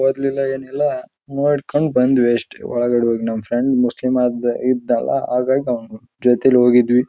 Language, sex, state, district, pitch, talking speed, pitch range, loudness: Kannada, male, Karnataka, Raichur, 125 Hz, 135 wpm, 120-135 Hz, -18 LUFS